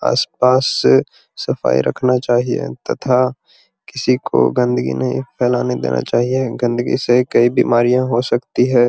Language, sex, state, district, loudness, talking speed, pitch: Magahi, male, Bihar, Gaya, -16 LUFS, 140 wpm, 120 Hz